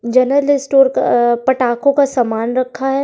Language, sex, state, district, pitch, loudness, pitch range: Hindi, female, Uttar Pradesh, Jyotiba Phule Nagar, 260 Hz, -14 LUFS, 240-275 Hz